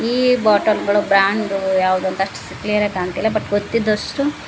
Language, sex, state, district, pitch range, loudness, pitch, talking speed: Kannada, female, Karnataka, Koppal, 195-220 Hz, -18 LUFS, 205 Hz, 135 wpm